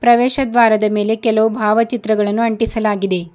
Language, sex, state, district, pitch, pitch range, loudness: Kannada, female, Karnataka, Bidar, 220 Hz, 210-230 Hz, -15 LUFS